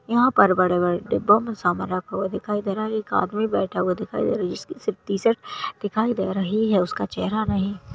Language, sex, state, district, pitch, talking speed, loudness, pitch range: Hindi, female, Maharashtra, Sindhudurg, 205 Hz, 240 wpm, -23 LUFS, 190-220 Hz